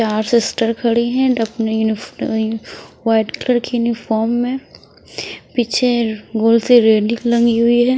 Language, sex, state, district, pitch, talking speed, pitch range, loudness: Hindi, female, Odisha, Sambalpur, 230 Hz, 105 wpm, 220-240 Hz, -16 LUFS